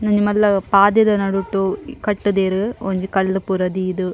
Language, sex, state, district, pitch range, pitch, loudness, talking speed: Tulu, female, Karnataka, Dakshina Kannada, 190-205 Hz, 195 Hz, -18 LUFS, 130 wpm